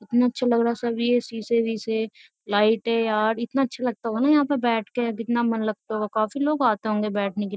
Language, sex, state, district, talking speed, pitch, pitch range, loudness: Hindi, female, Uttar Pradesh, Jyotiba Phule Nagar, 260 wpm, 230 Hz, 215-240 Hz, -24 LUFS